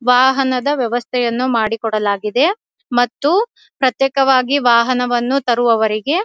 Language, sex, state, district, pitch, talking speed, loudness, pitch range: Kannada, female, Karnataka, Dharwad, 250 Hz, 75 wpm, -16 LUFS, 235-270 Hz